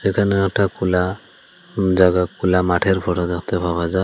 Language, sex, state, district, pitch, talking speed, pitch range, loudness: Bengali, male, Assam, Hailakandi, 90 Hz, 150 wpm, 90-95 Hz, -18 LUFS